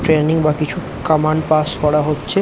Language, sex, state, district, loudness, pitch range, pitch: Bengali, male, West Bengal, Jhargram, -17 LUFS, 150-155 Hz, 155 Hz